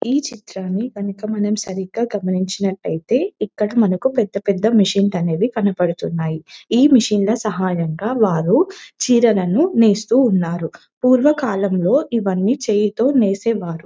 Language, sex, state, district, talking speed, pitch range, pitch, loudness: Telugu, female, Telangana, Nalgonda, 115 wpm, 190-235 Hz, 210 Hz, -18 LUFS